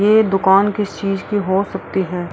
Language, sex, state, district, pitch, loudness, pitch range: Hindi, female, Bihar, Araria, 195 Hz, -17 LUFS, 190-205 Hz